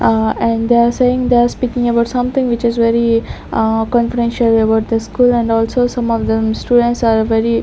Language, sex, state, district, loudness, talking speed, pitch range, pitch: English, female, Chandigarh, Chandigarh, -14 LUFS, 205 wpm, 225-240 Hz, 235 Hz